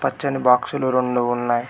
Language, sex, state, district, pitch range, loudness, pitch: Telugu, male, Telangana, Mahabubabad, 120-130 Hz, -20 LUFS, 125 Hz